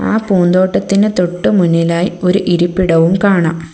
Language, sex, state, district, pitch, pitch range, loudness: Malayalam, female, Kerala, Kollam, 180 Hz, 170-195 Hz, -12 LUFS